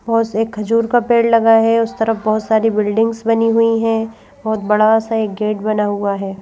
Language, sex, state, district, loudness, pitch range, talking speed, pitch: Hindi, female, Madhya Pradesh, Bhopal, -15 LUFS, 215-230 Hz, 215 wpm, 225 Hz